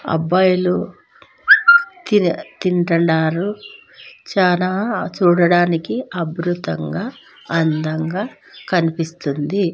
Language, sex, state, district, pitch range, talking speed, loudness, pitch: Telugu, female, Andhra Pradesh, Sri Satya Sai, 165-200 Hz, 50 wpm, -17 LUFS, 175 Hz